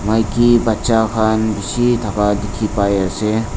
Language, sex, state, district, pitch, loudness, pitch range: Nagamese, male, Nagaland, Dimapur, 110 Hz, -16 LUFS, 105-115 Hz